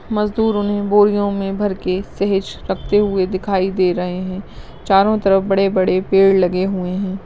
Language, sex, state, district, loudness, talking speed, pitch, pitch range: Hindi, female, Goa, North and South Goa, -17 LUFS, 175 wpm, 195 Hz, 185-205 Hz